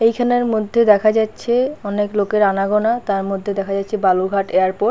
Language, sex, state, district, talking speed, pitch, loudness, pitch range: Bengali, female, West Bengal, Paschim Medinipur, 170 wpm, 210 Hz, -17 LUFS, 195-225 Hz